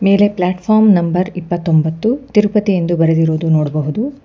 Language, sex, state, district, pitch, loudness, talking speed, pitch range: Kannada, female, Karnataka, Bangalore, 180 Hz, -14 LUFS, 125 wpm, 165-210 Hz